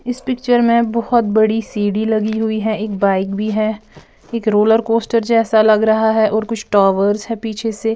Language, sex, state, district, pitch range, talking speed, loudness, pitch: Hindi, female, Bihar, Patna, 215-230 Hz, 190 wpm, -16 LUFS, 220 Hz